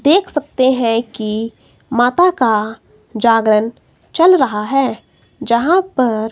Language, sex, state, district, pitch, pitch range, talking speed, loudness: Hindi, female, Himachal Pradesh, Shimla, 245 Hz, 225-295 Hz, 115 wpm, -15 LUFS